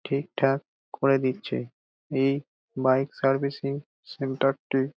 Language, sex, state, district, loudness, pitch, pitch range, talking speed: Bengali, male, West Bengal, Dakshin Dinajpur, -27 LUFS, 135 Hz, 135-140 Hz, 110 wpm